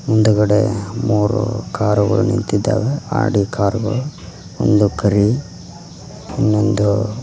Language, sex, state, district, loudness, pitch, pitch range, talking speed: Kannada, male, Karnataka, Koppal, -17 LUFS, 105 Hz, 105-115 Hz, 85 wpm